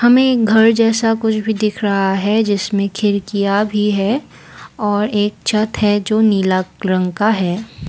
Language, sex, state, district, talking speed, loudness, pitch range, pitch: Hindi, female, Assam, Kamrup Metropolitan, 160 wpm, -16 LUFS, 200-220 Hz, 210 Hz